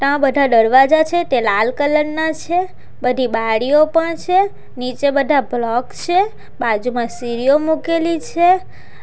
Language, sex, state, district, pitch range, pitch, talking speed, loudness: Gujarati, female, Gujarat, Valsad, 250-330 Hz, 285 Hz, 140 wpm, -16 LUFS